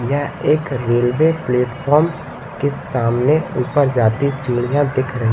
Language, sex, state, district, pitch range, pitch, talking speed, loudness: Hindi, male, Madhya Pradesh, Katni, 125-145 Hz, 135 Hz, 125 wpm, -17 LUFS